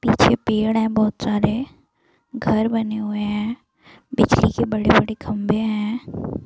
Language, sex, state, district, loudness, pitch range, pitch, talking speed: Hindi, female, Bihar, Gaya, -20 LUFS, 210-220 Hz, 215 Hz, 130 wpm